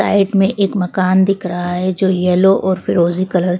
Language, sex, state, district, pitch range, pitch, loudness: Hindi, female, Madhya Pradesh, Bhopal, 180-195 Hz, 185 Hz, -15 LUFS